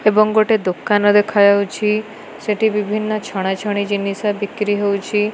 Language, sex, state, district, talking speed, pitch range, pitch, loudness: Odia, female, Odisha, Malkangiri, 125 wpm, 200-215 Hz, 210 Hz, -17 LUFS